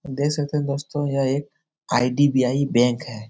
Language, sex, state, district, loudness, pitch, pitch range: Hindi, male, Bihar, Jahanabad, -22 LUFS, 140 Hz, 125-145 Hz